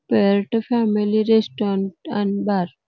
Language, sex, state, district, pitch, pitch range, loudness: Marathi, female, Karnataka, Belgaum, 205 Hz, 200-220 Hz, -20 LUFS